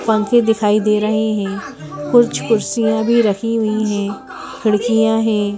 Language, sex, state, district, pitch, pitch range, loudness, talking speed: Hindi, female, Madhya Pradesh, Bhopal, 215 Hz, 210-225 Hz, -16 LUFS, 140 wpm